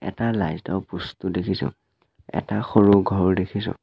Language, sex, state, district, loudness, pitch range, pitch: Assamese, male, Assam, Sonitpur, -23 LUFS, 95-105 Hz, 95 Hz